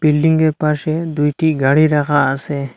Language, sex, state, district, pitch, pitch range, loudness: Bengali, male, Assam, Hailakandi, 150 Hz, 145-155 Hz, -15 LUFS